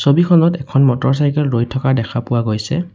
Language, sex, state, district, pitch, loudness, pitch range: Assamese, male, Assam, Sonitpur, 135 Hz, -15 LUFS, 120-160 Hz